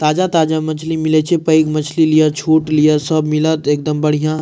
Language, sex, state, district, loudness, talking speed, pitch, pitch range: Maithili, male, Bihar, Madhepura, -15 LUFS, 175 wpm, 155 Hz, 150-160 Hz